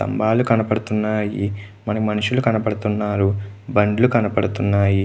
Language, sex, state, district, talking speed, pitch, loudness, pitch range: Telugu, male, Andhra Pradesh, Krishna, 60 wpm, 105 Hz, -20 LUFS, 100-110 Hz